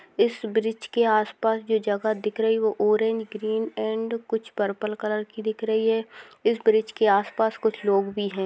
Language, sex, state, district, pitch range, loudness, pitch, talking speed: Hindi, female, Rajasthan, Churu, 215-225 Hz, -25 LUFS, 220 Hz, 215 wpm